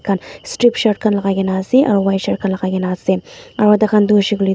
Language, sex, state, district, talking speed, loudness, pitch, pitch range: Nagamese, female, Nagaland, Dimapur, 225 wpm, -15 LUFS, 200 Hz, 190-210 Hz